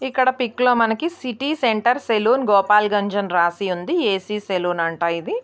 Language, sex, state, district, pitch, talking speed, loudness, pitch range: Telugu, female, Andhra Pradesh, Guntur, 220 Hz, 165 wpm, -19 LUFS, 195-255 Hz